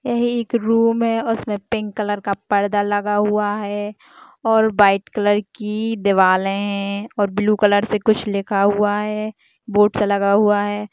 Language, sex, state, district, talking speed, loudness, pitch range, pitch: Hindi, female, Chhattisgarh, Jashpur, 175 wpm, -19 LUFS, 205-220 Hz, 205 Hz